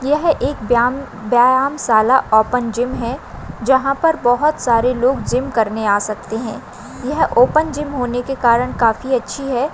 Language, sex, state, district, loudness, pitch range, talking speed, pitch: Hindi, female, Maharashtra, Aurangabad, -16 LUFS, 235-270 Hz, 160 wpm, 250 Hz